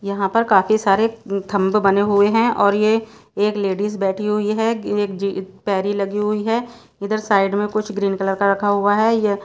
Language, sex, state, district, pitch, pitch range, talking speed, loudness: Hindi, female, Odisha, Sambalpur, 205 Hz, 195-215 Hz, 215 wpm, -19 LUFS